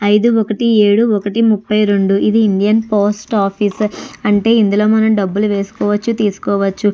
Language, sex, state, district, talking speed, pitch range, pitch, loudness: Telugu, female, Andhra Pradesh, Chittoor, 145 wpm, 205-220 Hz, 210 Hz, -14 LUFS